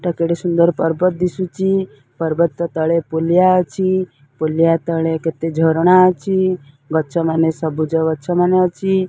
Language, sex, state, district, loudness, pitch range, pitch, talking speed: Odia, female, Odisha, Sambalpur, -17 LUFS, 160-185 Hz, 170 Hz, 125 wpm